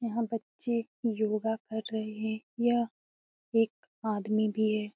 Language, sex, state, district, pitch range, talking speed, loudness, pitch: Hindi, female, Bihar, Jamui, 215-230 Hz, 135 wpm, -32 LUFS, 220 Hz